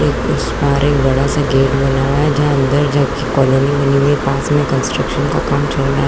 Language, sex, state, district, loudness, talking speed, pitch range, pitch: Hindi, female, Chhattisgarh, Bilaspur, -14 LUFS, 235 wpm, 135-145 Hz, 140 Hz